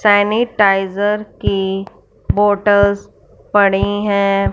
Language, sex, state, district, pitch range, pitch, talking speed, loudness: Hindi, female, Punjab, Fazilka, 195-205 Hz, 205 Hz, 65 wpm, -15 LUFS